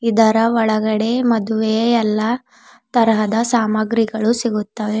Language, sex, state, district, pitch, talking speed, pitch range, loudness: Kannada, female, Karnataka, Bidar, 225 Hz, 85 wpm, 215-230 Hz, -17 LUFS